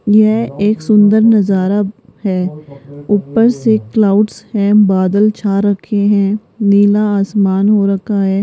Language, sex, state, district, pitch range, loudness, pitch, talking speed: Hindi, female, Rajasthan, Jaipur, 195-215 Hz, -12 LUFS, 205 Hz, 130 wpm